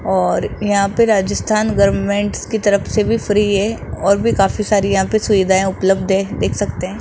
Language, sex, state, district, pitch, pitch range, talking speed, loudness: Hindi, male, Rajasthan, Jaipur, 200 Hz, 195-210 Hz, 195 wpm, -16 LUFS